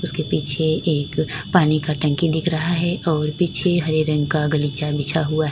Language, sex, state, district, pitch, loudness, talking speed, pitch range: Hindi, female, Uttar Pradesh, Lalitpur, 155 Hz, -20 LUFS, 195 wpm, 150-165 Hz